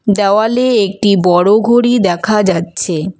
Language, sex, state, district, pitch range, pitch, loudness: Bengali, female, West Bengal, Alipurduar, 180-220 Hz, 200 Hz, -12 LUFS